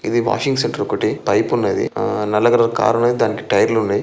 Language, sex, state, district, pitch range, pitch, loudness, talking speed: Telugu, male, Andhra Pradesh, Chittoor, 105-120 Hz, 115 Hz, -17 LUFS, 210 wpm